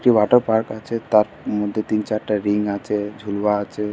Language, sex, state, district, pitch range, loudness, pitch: Bengali, male, West Bengal, Purulia, 105-110 Hz, -21 LUFS, 105 Hz